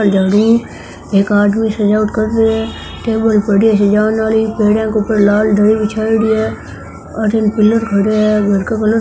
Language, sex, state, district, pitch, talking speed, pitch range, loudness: Marwari, female, Rajasthan, Nagaur, 215 Hz, 95 wpm, 205-220 Hz, -13 LUFS